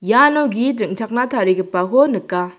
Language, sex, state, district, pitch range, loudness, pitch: Garo, female, Meghalaya, South Garo Hills, 185-260 Hz, -17 LUFS, 220 Hz